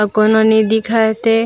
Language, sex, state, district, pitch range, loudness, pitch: Chhattisgarhi, female, Chhattisgarh, Raigarh, 215-225 Hz, -13 LUFS, 220 Hz